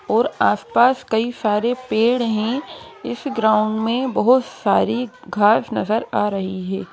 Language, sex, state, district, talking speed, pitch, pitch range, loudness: Hindi, female, Madhya Pradesh, Bhopal, 140 wpm, 225 Hz, 215-245 Hz, -19 LUFS